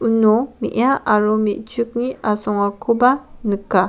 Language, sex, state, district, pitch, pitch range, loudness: Garo, female, Meghalaya, West Garo Hills, 220 Hz, 210-245 Hz, -18 LUFS